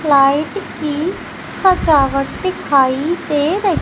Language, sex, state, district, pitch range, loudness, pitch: Hindi, female, Madhya Pradesh, Umaria, 280-365 Hz, -16 LUFS, 305 Hz